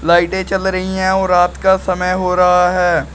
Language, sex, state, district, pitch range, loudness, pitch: Hindi, male, Uttar Pradesh, Shamli, 180-190 Hz, -14 LUFS, 185 Hz